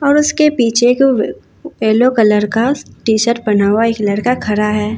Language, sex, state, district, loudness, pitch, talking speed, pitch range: Hindi, female, Bihar, Katihar, -13 LUFS, 230 Hz, 170 wpm, 210-255 Hz